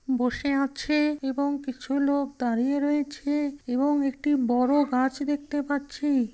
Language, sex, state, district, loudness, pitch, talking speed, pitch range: Bengali, male, West Bengal, Kolkata, -26 LUFS, 280 Hz, 125 wpm, 260-290 Hz